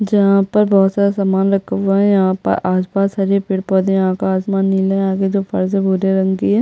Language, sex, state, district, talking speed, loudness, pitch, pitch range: Hindi, female, Chhattisgarh, Bastar, 255 wpm, -15 LUFS, 195 Hz, 190-200 Hz